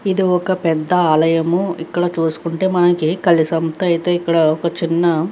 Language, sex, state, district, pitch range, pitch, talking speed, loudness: Telugu, female, Andhra Pradesh, Krishna, 165-180 Hz, 170 Hz, 125 wpm, -16 LUFS